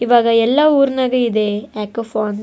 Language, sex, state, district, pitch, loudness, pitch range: Kannada, female, Karnataka, Bellary, 230 Hz, -16 LUFS, 215-255 Hz